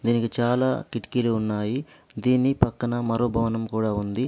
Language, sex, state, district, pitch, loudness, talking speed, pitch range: Telugu, male, Telangana, Adilabad, 120 Hz, -25 LUFS, 140 wpm, 115-125 Hz